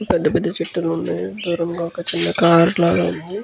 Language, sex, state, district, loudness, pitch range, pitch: Telugu, female, Andhra Pradesh, Guntur, -18 LUFS, 170-175 Hz, 170 Hz